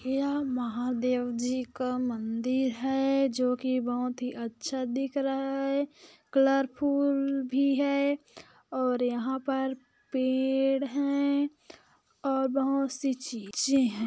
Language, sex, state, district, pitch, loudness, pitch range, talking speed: Hindi, female, Chhattisgarh, Korba, 265 Hz, -29 LUFS, 250-275 Hz, 115 wpm